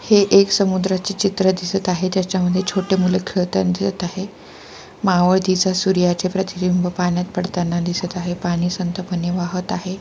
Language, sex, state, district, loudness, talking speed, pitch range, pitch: Marathi, female, Maharashtra, Pune, -19 LUFS, 140 wpm, 180-190 Hz, 185 Hz